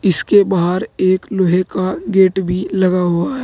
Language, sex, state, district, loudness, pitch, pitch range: Hindi, male, Uttar Pradesh, Saharanpur, -15 LUFS, 185 Hz, 180-190 Hz